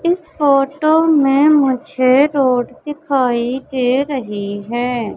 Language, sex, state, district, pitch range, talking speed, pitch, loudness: Hindi, female, Madhya Pradesh, Katni, 245-295 Hz, 105 wpm, 270 Hz, -15 LUFS